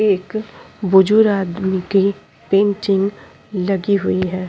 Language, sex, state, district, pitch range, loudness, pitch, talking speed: Hindi, female, Chhattisgarh, Kabirdham, 190-205 Hz, -17 LUFS, 195 Hz, 120 wpm